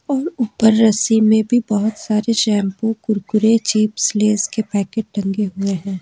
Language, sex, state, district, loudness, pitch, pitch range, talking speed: Hindi, female, Jharkhand, Ranchi, -17 LUFS, 215 Hz, 205-225 Hz, 150 wpm